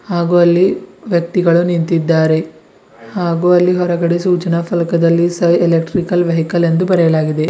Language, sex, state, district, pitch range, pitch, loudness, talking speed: Kannada, male, Karnataka, Bidar, 170-175 Hz, 170 Hz, -14 LUFS, 110 wpm